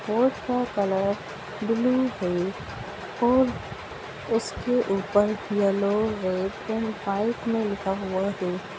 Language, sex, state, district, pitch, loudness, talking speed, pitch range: Bhojpuri, female, Bihar, Saran, 205 Hz, -26 LUFS, 110 wpm, 195-225 Hz